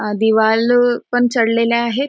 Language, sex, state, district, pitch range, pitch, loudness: Marathi, female, Maharashtra, Nagpur, 220-245 Hz, 235 Hz, -15 LUFS